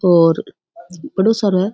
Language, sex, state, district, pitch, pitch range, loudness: Rajasthani, female, Rajasthan, Churu, 190 Hz, 175-215 Hz, -16 LUFS